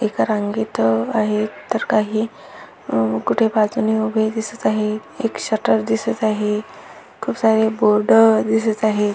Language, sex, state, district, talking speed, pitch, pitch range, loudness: Marathi, female, Maharashtra, Aurangabad, 130 wpm, 215 Hz, 205-220 Hz, -19 LUFS